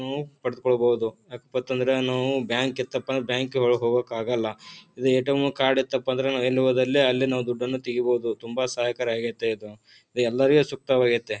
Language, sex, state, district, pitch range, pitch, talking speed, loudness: Kannada, male, Karnataka, Bijapur, 120-130 Hz, 125 Hz, 155 wpm, -24 LUFS